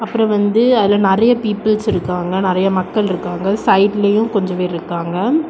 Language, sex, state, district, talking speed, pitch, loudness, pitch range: Tamil, female, Tamil Nadu, Kanyakumari, 140 wpm, 205 Hz, -15 LUFS, 185-220 Hz